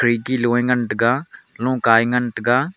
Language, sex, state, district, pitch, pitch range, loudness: Wancho, male, Arunachal Pradesh, Longding, 120 Hz, 115-125 Hz, -18 LUFS